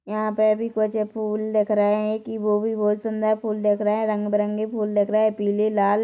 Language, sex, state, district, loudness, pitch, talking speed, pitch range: Hindi, female, Chhattisgarh, Korba, -23 LUFS, 215 Hz, 240 wpm, 210-215 Hz